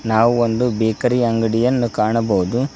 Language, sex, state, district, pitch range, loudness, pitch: Kannada, male, Karnataka, Koppal, 110-120 Hz, -17 LUFS, 115 Hz